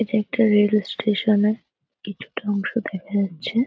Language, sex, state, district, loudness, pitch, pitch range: Bengali, female, West Bengal, North 24 Parganas, -22 LUFS, 210 Hz, 205-225 Hz